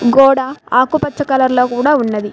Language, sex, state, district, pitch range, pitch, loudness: Telugu, female, Telangana, Mahabubabad, 250-275 Hz, 260 Hz, -13 LUFS